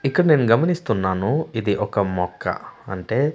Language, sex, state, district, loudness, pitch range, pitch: Telugu, male, Andhra Pradesh, Manyam, -21 LUFS, 95-145 Hz, 110 Hz